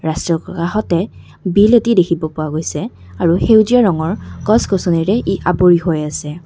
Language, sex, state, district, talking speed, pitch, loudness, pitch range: Assamese, female, Assam, Kamrup Metropolitan, 160 wpm, 175 Hz, -15 LUFS, 160-200 Hz